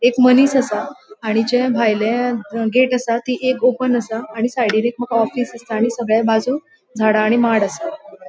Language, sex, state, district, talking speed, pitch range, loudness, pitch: Konkani, female, Goa, North and South Goa, 175 wpm, 225-250 Hz, -17 LUFS, 235 Hz